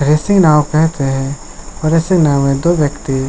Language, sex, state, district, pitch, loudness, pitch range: Hindi, male, Jharkhand, Sahebganj, 150 Hz, -13 LUFS, 140-160 Hz